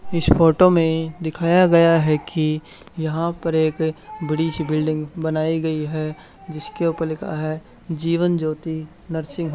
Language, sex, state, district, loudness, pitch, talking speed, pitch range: Hindi, male, Haryana, Charkhi Dadri, -20 LUFS, 160 Hz, 150 wpm, 155-170 Hz